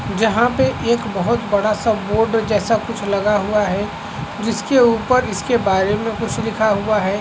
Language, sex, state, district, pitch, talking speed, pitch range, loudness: Hindi, male, Chhattisgarh, Korba, 215 Hz, 175 wpm, 205-230 Hz, -18 LUFS